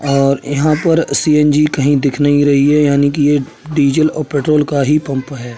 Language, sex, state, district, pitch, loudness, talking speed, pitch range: Hindi, male, Uttar Pradesh, Budaun, 145 Hz, -13 LUFS, 205 wpm, 140-150 Hz